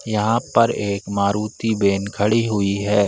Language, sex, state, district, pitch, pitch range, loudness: Hindi, male, Chhattisgarh, Bilaspur, 105 Hz, 100-110 Hz, -20 LUFS